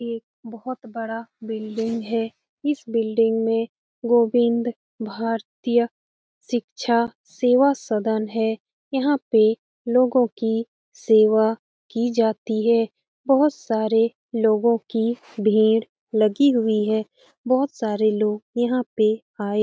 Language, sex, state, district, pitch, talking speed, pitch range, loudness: Hindi, female, Bihar, Lakhisarai, 230 Hz, 120 wpm, 220-240 Hz, -22 LUFS